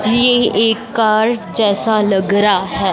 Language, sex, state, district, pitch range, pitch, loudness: Hindi, female, Punjab, Fazilka, 200-225 Hz, 215 Hz, -14 LUFS